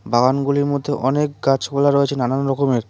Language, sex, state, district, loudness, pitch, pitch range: Bengali, male, West Bengal, Cooch Behar, -19 LUFS, 140 Hz, 130-140 Hz